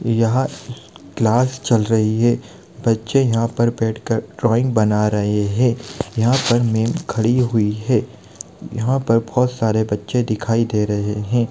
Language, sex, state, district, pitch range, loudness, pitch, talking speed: Hindi, male, Bihar, Sitamarhi, 110-120 Hz, -18 LUFS, 115 Hz, 145 wpm